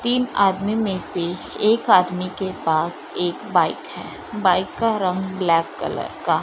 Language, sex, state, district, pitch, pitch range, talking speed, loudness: Hindi, male, Punjab, Fazilka, 185 Hz, 180-215 Hz, 160 wpm, -21 LUFS